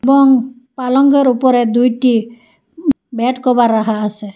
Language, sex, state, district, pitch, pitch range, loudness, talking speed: Bengali, female, Assam, Hailakandi, 250 Hz, 235-265 Hz, -13 LUFS, 110 wpm